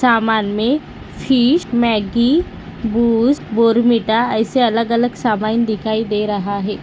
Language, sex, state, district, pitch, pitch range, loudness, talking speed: Hindi, female, Maharashtra, Nagpur, 230 Hz, 220-240 Hz, -16 LUFS, 130 wpm